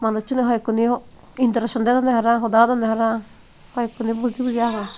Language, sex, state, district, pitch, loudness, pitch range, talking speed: Chakma, female, Tripura, Unakoti, 235 Hz, -19 LUFS, 225-245 Hz, 190 wpm